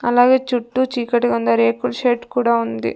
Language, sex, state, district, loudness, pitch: Telugu, female, Andhra Pradesh, Sri Satya Sai, -18 LUFS, 240 Hz